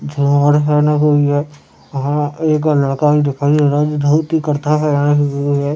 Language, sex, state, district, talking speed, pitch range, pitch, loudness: Hindi, male, Chhattisgarh, Raigarh, 115 wpm, 145-150 Hz, 145 Hz, -14 LUFS